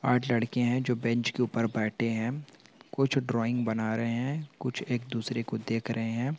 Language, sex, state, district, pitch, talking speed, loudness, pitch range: Hindi, male, Andhra Pradesh, Anantapur, 120 Hz, 205 wpm, -30 LUFS, 115-125 Hz